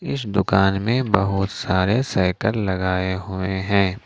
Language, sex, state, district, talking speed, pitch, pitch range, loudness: Hindi, male, Jharkhand, Ranchi, 135 wpm, 95 Hz, 95-105 Hz, -21 LUFS